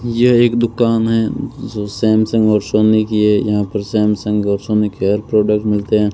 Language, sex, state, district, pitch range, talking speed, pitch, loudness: Hindi, male, Rajasthan, Bikaner, 105-110 Hz, 185 wpm, 105 Hz, -15 LUFS